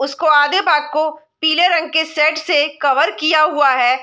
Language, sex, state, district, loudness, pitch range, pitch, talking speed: Hindi, female, Bihar, Saharsa, -15 LUFS, 290-320 Hz, 310 Hz, 195 wpm